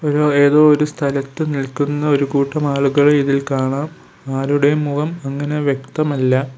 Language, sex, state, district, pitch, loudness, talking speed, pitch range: Malayalam, male, Kerala, Kollam, 145 Hz, -17 LUFS, 110 wpm, 140-150 Hz